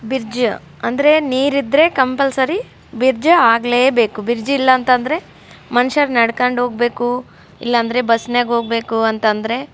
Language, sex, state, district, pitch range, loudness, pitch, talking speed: Kannada, female, Karnataka, Raichur, 235-270 Hz, -16 LUFS, 245 Hz, 105 wpm